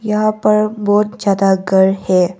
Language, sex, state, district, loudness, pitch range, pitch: Hindi, female, Arunachal Pradesh, Longding, -14 LUFS, 190-210 Hz, 205 Hz